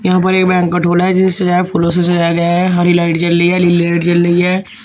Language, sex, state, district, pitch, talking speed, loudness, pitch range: Hindi, male, Uttar Pradesh, Shamli, 175 Hz, 285 wpm, -12 LUFS, 175-185 Hz